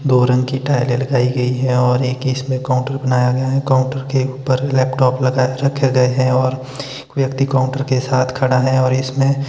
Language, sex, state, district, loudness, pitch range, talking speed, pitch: Hindi, male, Himachal Pradesh, Shimla, -16 LUFS, 130-135 Hz, 200 wpm, 130 Hz